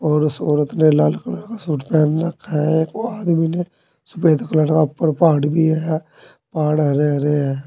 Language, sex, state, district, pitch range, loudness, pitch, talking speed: Hindi, male, Uttar Pradesh, Saharanpur, 150-165 Hz, -18 LUFS, 155 Hz, 195 wpm